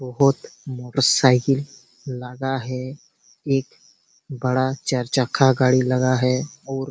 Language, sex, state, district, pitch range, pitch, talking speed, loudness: Hindi, male, Chhattisgarh, Bastar, 130-135 Hz, 130 Hz, 115 wpm, -21 LUFS